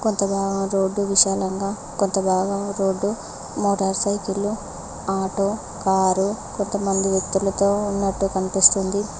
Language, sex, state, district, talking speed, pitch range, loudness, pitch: Telugu, female, Telangana, Mahabubabad, 90 wpm, 195-200 Hz, -21 LUFS, 195 Hz